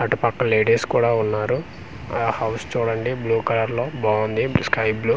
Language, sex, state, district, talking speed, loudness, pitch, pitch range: Telugu, male, Andhra Pradesh, Manyam, 150 wpm, -21 LUFS, 115 Hz, 110-120 Hz